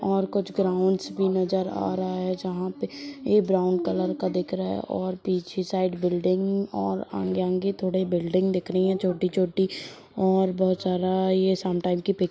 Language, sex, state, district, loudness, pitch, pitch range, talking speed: Hindi, male, Chhattisgarh, Kabirdham, -25 LUFS, 185 Hz, 180-190 Hz, 185 wpm